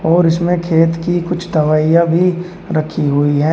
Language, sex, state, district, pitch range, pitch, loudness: Hindi, male, Uttar Pradesh, Shamli, 155-175 Hz, 165 Hz, -14 LUFS